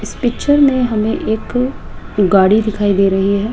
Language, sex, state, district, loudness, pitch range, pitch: Hindi, female, Rajasthan, Jaipur, -14 LUFS, 200-245 Hz, 215 Hz